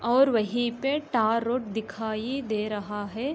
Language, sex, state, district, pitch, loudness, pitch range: Hindi, female, Uttar Pradesh, Jalaun, 230 Hz, -27 LUFS, 215-250 Hz